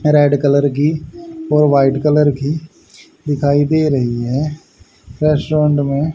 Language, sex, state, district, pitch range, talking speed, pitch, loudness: Hindi, male, Haryana, Rohtak, 140-150 Hz, 135 wpm, 145 Hz, -15 LUFS